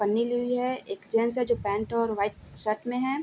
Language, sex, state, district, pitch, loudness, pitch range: Hindi, female, Bihar, Vaishali, 230 Hz, -28 LUFS, 215-245 Hz